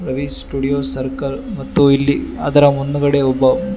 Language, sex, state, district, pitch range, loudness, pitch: Kannada, male, Karnataka, Bangalore, 135-140 Hz, -16 LUFS, 140 Hz